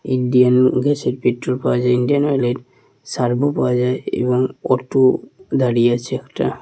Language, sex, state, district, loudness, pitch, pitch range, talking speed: Bengali, male, West Bengal, Malda, -18 LUFS, 125 Hz, 125-135 Hz, 155 wpm